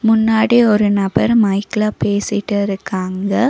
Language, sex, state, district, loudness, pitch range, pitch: Tamil, female, Tamil Nadu, Nilgiris, -15 LUFS, 200-220 Hz, 210 Hz